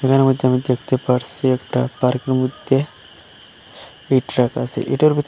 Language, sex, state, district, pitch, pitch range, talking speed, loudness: Bengali, male, Assam, Hailakandi, 130 Hz, 125-135 Hz, 135 wpm, -19 LUFS